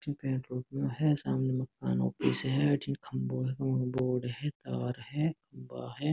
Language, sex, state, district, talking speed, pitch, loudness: Rajasthani, male, Rajasthan, Nagaur, 165 wpm, 130 Hz, -33 LUFS